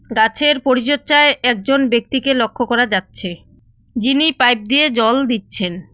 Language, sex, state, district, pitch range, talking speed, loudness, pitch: Bengali, female, West Bengal, Cooch Behar, 220-275 Hz, 120 wpm, -15 LUFS, 245 Hz